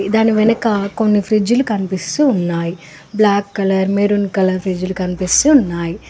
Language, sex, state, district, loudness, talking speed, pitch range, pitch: Telugu, female, Telangana, Mahabubabad, -15 LUFS, 140 wpm, 185-215 Hz, 200 Hz